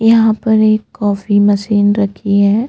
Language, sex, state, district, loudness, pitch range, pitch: Hindi, female, Chhattisgarh, Jashpur, -13 LUFS, 205-220 Hz, 205 Hz